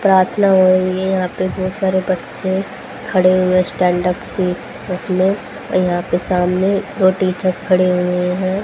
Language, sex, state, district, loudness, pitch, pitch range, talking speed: Hindi, female, Haryana, Jhajjar, -16 LUFS, 185 Hz, 180-190 Hz, 160 wpm